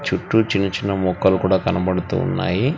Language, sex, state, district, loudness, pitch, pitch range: Telugu, male, Telangana, Hyderabad, -19 LUFS, 95 Hz, 95-100 Hz